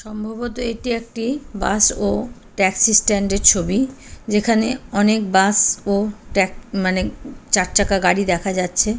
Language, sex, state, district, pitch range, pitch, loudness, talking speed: Bengali, female, West Bengal, North 24 Parganas, 195-230 Hz, 210 Hz, -18 LUFS, 120 wpm